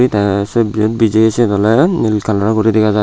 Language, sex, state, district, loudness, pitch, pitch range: Chakma, male, Tripura, Unakoti, -13 LUFS, 110 Hz, 105-110 Hz